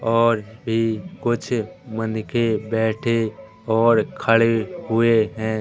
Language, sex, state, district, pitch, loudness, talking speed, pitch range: Hindi, male, Madhya Pradesh, Katni, 115 Hz, -21 LUFS, 105 wpm, 110-115 Hz